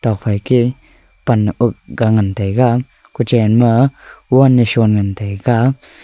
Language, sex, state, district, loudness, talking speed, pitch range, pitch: Wancho, male, Arunachal Pradesh, Longding, -14 LUFS, 130 wpm, 105-125 Hz, 120 Hz